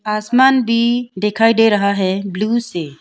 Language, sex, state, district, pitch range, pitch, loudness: Hindi, female, Arunachal Pradesh, Longding, 200-235 Hz, 215 Hz, -15 LUFS